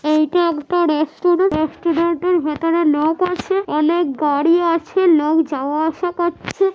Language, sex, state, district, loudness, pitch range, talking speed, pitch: Bengali, female, West Bengal, North 24 Parganas, -17 LUFS, 305-350 Hz, 135 wpm, 330 Hz